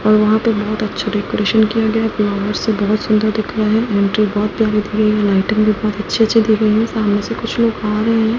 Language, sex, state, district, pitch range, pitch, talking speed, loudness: Hindi, female, Delhi, New Delhi, 210-220 Hz, 215 Hz, 265 wpm, -16 LUFS